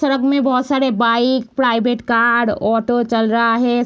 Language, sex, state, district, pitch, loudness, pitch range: Hindi, female, Bihar, Madhepura, 240 Hz, -16 LUFS, 230-260 Hz